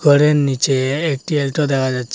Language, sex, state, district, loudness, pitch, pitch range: Bengali, male, Assam, Hailakandi, -17 LUFS, 140 Hz, 130-150 Hz